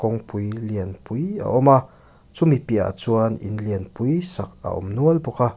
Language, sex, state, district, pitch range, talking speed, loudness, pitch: Mizo, male, Mizoram, Aizawl, 105-135 Hz, 215 wpm, -19 LUFS, 115 Hz